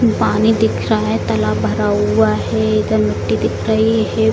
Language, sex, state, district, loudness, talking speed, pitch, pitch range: Hindi, female, Bihar, Jamui, -16 LUFS, 180 wpm, 110 Hz, 105-110 Hz